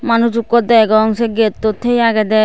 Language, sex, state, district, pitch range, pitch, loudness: Chakma, female, Tripura, West Tripura, 220-235 Hz, 230 Hz, -13 LUFS